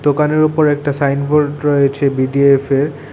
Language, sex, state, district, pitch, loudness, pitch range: Bengali, male, Tripura, West Tripura, 145 Hz, -14 LUFS, 140-150 Hz